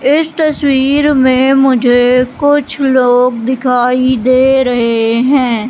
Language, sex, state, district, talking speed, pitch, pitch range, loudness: Hindi, female, Madhya Pradesh, Katni, 105 wpm, 255 Hz, 245-275 Hz, -10 LUFS